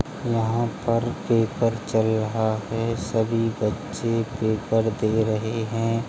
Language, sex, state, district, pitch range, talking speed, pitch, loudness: Hindi, male, Uttar Pradesh, Hamirpur, 110-115 Hz, 130 wpm, 115 Hz, -24 LUFS